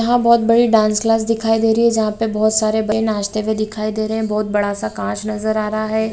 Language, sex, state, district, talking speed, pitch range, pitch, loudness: Hindi, female, Bihar, Araria, 285 wpm, 215-225 Hz, 220 Hz, -17 LUFS